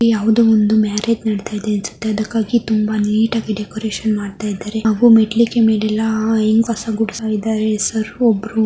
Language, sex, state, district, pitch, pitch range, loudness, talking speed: Kannada, male, Karnataka, Mysore, 220 Hz, 215-225 Hz, -16 LUFS, 140 wpm